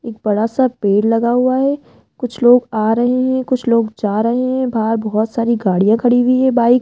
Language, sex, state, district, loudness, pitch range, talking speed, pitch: Hindi, female, Rajasthan, Jaipur, -15 LUFS, 220-255 Hz, 220 wpm, 235 Hz